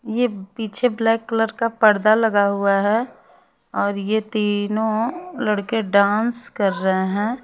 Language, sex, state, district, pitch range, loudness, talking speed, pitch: Hindi, female, Chhattisgarh, Raipur, 205-230 Hz, -20 LUFS, 135 wpm, 220 Hz